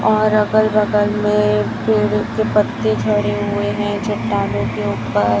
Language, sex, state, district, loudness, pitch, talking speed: Hindi, male, Chhattisgarh, Raipur, -17 LUFS, 110 Hz, 145 wpm